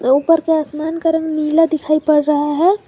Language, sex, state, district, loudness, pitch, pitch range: Hindi, female, Jharkhand, Garhwa, -16 LUFS, 315 Hz, 300-325 Hz